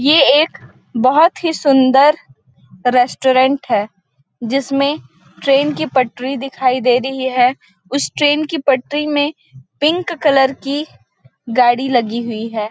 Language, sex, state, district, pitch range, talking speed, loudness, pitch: Hindi, female, Chhattisgarh, Balrampur, 245-290 Hz, 125 wpm, -15 LUFS, 265 Hz